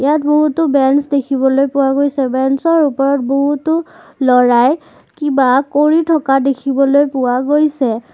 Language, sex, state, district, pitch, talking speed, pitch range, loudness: Assamese, female, Assam, Kamrup Metropolitan, 275 Hz, 125 wpm, 265-300 Hz, -13 LUFS